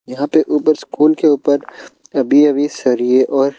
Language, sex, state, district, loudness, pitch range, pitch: Hindi, male, Bihar, Kaimur, -14 LUFS, 135-150 Hz, 145 Hz